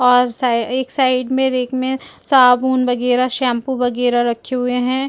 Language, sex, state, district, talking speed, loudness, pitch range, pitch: Hindi, female, Chhattisgarh, Bilaspur, 165 wpm, -17 LUFS, 245-260 Hz, 250 Hz